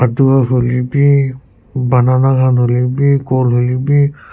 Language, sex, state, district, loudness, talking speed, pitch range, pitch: Nagamese, male, Nagaland, Kohima, -13 LUFS, 95 wpm, 125-135 Hz, 130 Hz